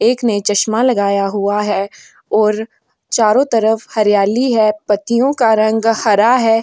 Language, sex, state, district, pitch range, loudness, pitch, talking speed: Hindi, female, Goa, North and South Goa, 205-235 Hz, -14 LUFS, 220 Hz, 145 wpm